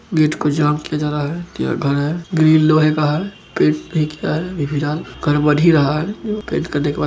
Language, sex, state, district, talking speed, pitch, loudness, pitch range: Hindi, male, Bihar, Begusarai, 205 wpm, 155 Hz, -17 LUFS, 150-165 Hz